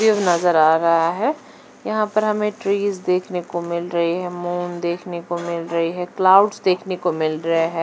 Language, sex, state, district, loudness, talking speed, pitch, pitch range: Hindi, female, Punjab, Fazilka, -20 LUFS, 190 wpm, 175 Hz, 170-195 Hz